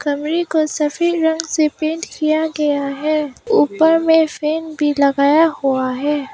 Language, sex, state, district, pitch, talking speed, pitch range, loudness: Hindi, female, Arunachal Pradesh, Papum Pare, 310 Hz, 150 wpm, 290-320 Hz, -17 LUFS